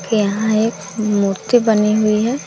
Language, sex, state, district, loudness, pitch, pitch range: Hindi, female, Bihar, West Champaran, -16 LUFS, 215 Hz, 205-220 Hz